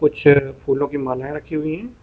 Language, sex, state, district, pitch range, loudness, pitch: Hindi, male, Uttar Pradesh, Lucknow, 135-150 Hz, -20 LUFS, 145 Hz